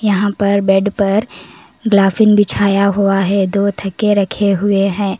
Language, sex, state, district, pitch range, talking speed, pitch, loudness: Hindi, female, Karnataka, Koppal, 195-205 Hz, 150 wpm, 200 Hz, -14 LUFS